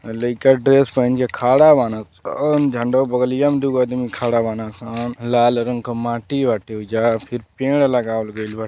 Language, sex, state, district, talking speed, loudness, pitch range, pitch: Bhojpuri, male, Uttar Pradesh, Deoria, 180 wpm, -18 LUFS, 115-130 Hz, 120 Hz